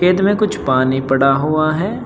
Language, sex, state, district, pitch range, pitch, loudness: Hindi, male, Uttar Pradesh, Shamli, 135-195 Hz, 155 Hz, -15 LUFS